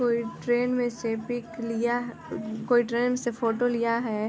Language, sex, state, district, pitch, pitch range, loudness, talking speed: Hindi, female, Bihar, Sitamarhi, 240 Hz, 230-245 Hz, -27 LUFS, 180 wpm